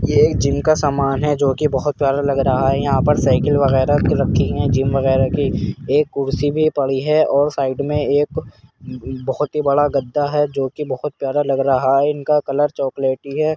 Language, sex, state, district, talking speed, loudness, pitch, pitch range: Hindi, male, Uttar Pradesh, Jyotiba Phule Nagar, 210 wpm, -17 LUFS, 140 Hz, 135-150 Hz